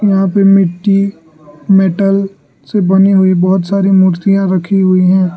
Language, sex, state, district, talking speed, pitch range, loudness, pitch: Hindi, male, Arunachal Pradesh, Lower Dibang Valley, 145 wpm, 185-195 Hz, -11 LUFS, 190 Hz